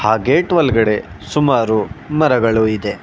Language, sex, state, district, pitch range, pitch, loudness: Kannada, male, Karnataka, Bangalore, 110-145 Hz, 115 Hz, -15 LUFS